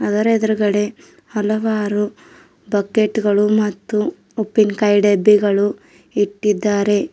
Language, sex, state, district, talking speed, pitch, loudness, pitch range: Kannada, female, Karnataka, Bidar, 75 wpm, 210 Hz, -17 LUFS, 205-215 Hz